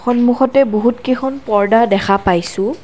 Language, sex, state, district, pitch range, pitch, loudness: Assamese, female, Assam, Kamrup Metropolitan, 200-255 Hz, 235 Hz, -14 LUFS